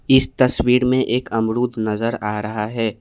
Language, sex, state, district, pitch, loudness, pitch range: Hindi, male, Assam, Kamrup Metropolitan, 115 Hz, -19 LUFS, 110-125 Hz